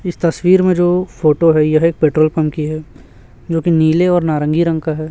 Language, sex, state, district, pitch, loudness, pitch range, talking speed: Hindi, male, Chhattisgarh, Raipur, 160 Hz, -14 LUFS, 155-170 Hz, 235 wpm